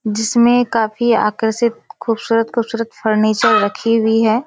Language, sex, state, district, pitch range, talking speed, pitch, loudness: Hindi, female, Bihar, Kishanganj, 220-235 Hz, 105 wpm, 230 Hz, -16 LUFS